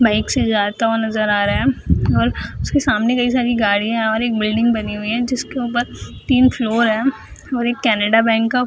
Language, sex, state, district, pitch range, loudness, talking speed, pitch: Hindi, female, Bihar, Jahanabad, 220-245 Hz, -17 LUFS, 220 wpm, 230 Hz